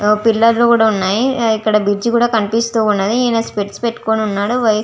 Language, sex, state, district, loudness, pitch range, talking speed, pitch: Telugu, female, Andhra Pradesh, Visakhapatnam, -15 LUFS, 210-235 Hz, 160 wpm, 220 Hz